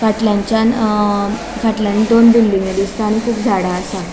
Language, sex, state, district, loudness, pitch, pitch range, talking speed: Konkani, female, Goa, North and South Goa, -14 LUFS, 215 Hz, 200-225 Hz, 145 wpm